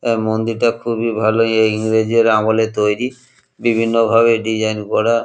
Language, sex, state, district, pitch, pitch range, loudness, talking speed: Bengali, male, West Bengal, Kolkata, 115 Hz, 110-115 Hz, -16 LUFS, 135 wpm